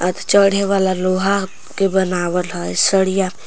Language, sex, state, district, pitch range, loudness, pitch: Magahi, female, Jharkhand, Palamu, 180-195 Hz, -17 LUFS, 190 Hz